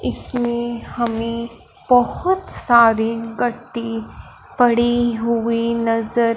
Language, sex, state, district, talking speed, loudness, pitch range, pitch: Hindi, male, Punjab, Fazilka, 85 wpm, -18 LUFS, 230-240 Hz, 235 Hz